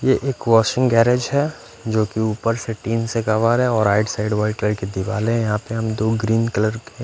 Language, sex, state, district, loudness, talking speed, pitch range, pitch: Hindi, male, Punjab, Fazilka, -20 LUFS, 240 wpm, 110-115 Hz, 115 Hz